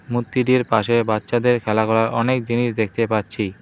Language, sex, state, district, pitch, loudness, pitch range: Bengali, male, West Bengal, Cooch Behar, 115 Hz, -19 LUFS, 110-120 Hz